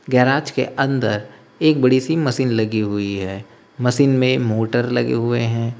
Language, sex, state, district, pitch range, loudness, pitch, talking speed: Hindi, male, Uttar Pradesh, Lalitpur, 110-135 Hz, -18 LUFS, 125 Hz, 165 wpm